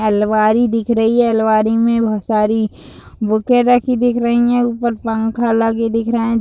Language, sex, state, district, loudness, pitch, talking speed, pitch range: Hindi, female, Uttar Pradesh, Deoria, -15 LUFS, 230 Hz, 180 wpm, 220-235 Hz